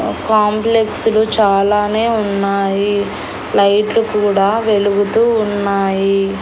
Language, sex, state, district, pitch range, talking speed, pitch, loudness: Telugu, female, Andhra Pradesh, Annamaya, 200-220 Hz, 75 wpm, 205 Hz, -14 LUFS